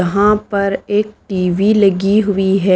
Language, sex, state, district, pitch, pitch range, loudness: Hindi, female, Delhi, New Delhi, 200 Hz, 190-210 Hz, -15 LUFS